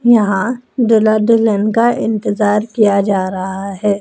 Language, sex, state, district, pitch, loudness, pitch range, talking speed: Hindi, male, Madhya Pradesh, Dhar, 215 Hz, -14 LUFS, 200-230 Hz, 135 wpm